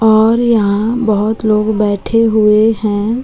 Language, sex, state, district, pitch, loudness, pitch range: Hindi, female, Madhya Pradesh, Umaria, 220 Hz, -12 LUFS, 210-225 Hz